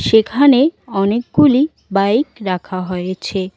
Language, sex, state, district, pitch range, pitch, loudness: Bengali, female, West Bengal, Cooch Behar, 185-260 Hz, 210 Hz, -15 LUFS